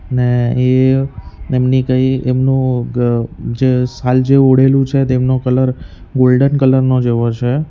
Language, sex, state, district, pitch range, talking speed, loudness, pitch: Gujarati, male, Gujarat, Valsad, 125-130 Hz, 140 wpm, -13 LUFS, 130 Hz